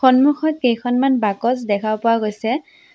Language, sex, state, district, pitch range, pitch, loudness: Assamese, female, Assam, Sonitpur, 220-275 Hz, 245 Hz, -18 LUFS